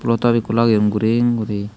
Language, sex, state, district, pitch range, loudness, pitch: Chakma, male, Tripura, Dhalai, 105-115 Hz, -17 LUFS, 115 Hz